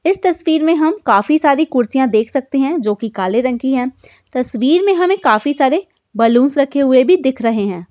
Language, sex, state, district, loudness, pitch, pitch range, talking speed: Hindi, female, Uttar Pradesh, Hamirpur, -15 LUFS, 270 Hz, 245-315 Hz, 205 wpm